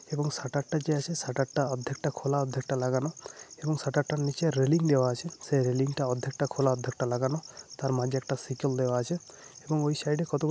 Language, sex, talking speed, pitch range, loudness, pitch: Bengali, male, 205 wpm, 130-150 Hz, -30 LUFS, 140 Hz